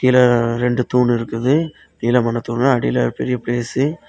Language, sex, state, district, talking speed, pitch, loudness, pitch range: Tamil, male, Tamil Nadu, Kanyakumari, 145 wpm, 125 Hz, -18 LUFS, 115-125 Hz